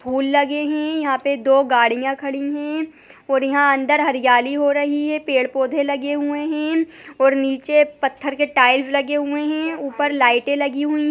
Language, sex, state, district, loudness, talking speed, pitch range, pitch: Hindi, female, Bihar, Begusarai, -19 LUFS, 180 wpm, 270-295 Hz, 285 Hz